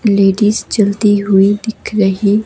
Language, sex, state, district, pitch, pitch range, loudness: Hindi, female, Himachal Pradesh, Shimla, 205 Hz, 200-210 Hz, -13 LUFS